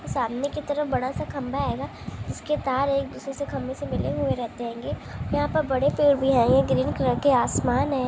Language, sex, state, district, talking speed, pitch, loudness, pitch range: Hindi, female, Rajasthan, Nagaur, 225 wpm, 275 Hz, -25 LUFS, 255-285 Hz